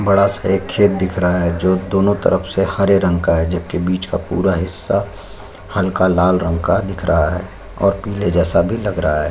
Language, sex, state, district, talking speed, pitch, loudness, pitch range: Hindi, male, Chhattisgarh, Sukma, 225 wpm, 95 Hz, -17 LUFS, 85-100 Hz